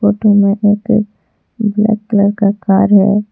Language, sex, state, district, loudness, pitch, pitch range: Hindi, female, Jharkhand, Deoghar, -12 LUFS, 205 Hz, 200-210 Hz